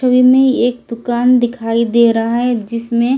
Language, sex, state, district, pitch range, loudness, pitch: Hindi, female, Delhi, New Delhi, 230-250 Hz, -13 LUFS, 240 Hz